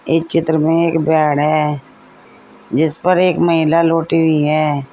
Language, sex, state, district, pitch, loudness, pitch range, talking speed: Hindi, female, Uttar Pradesh, Saharanpur, 160 Hz, -15 LUFS, 150-165 Hz, 160 wpm